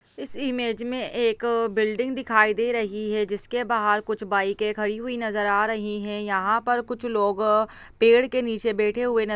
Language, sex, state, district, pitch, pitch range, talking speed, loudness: Hindi, female, Uttar Pradesh, Budaun, 220 Hz, 210-235 Hz, 205 wpm, -24 LUFS